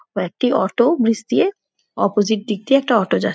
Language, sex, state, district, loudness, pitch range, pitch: Bengali, female, West Bengal, Dakshin Dinajpur, -18 LUFS, 210-275 Hz, 230 Hz